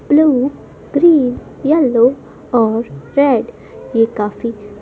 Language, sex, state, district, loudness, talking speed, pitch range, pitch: Hindi, female, Madhya Pradesh, Dhar, -15 LUFS, 85 wpm, 225-285 Hz, 245 Hz